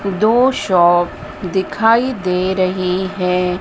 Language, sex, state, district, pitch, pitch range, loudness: Hindi, female, Madhya Pradesh, Dhar, 185 Hz, 180-215 Hz, -16 LUFS